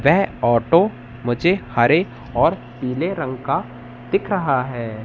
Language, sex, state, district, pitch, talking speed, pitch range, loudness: Hindi, male, Madhya Pradesh, Katni, 130 Hz, 130 wpm, 120-170 Hz, -20 LUFS